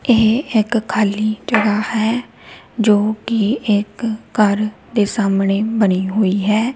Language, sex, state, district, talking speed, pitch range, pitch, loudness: Punjabi, female, Punjab, Kapurthala, 125 wpm, 205-225 Hz, 215 Hz, -17 LUFS